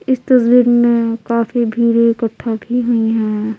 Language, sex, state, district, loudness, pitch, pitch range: Hindi, female, Bihar, Patna, -14 LUFS, 235 Hz, 225-240 Hz